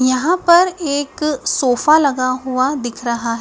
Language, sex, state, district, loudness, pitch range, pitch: Hindi, female, Madhya Pradesh, Dhar, -16 LUFS, 255-305 Hz, 265 Hz